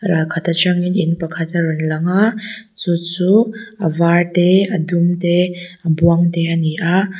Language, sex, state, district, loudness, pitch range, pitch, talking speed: Mizo, female, Mizoram, Aizawl, -16 LUFS, 170-185 Hz, 175 Hz, 185 wpm